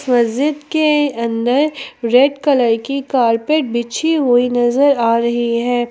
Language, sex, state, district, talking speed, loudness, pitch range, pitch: Hindi, female, Jharkhand, Palamu, 130 wpm, -15 LUFS, 235-285 Hz, 250 Hz